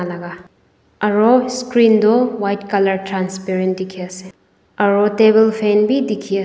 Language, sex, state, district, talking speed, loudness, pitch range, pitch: Nagamese, female, Nagaland, Dimapur, 120 wpm, -16 LUFS, 190-220 Hz, 205 Hz